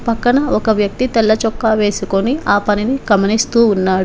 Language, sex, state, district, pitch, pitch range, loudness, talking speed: Telugu, female, Telangana, Komaram Bheem, 220 Hz, 205-235 Hz, -14 LUFS, 150 wpm